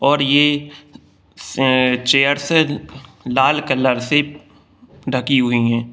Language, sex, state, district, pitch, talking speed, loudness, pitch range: Hindi, male, Bihar, Gopalganj, 135 Hz, 110 wpm, -16 LUFS, 125-145 Hz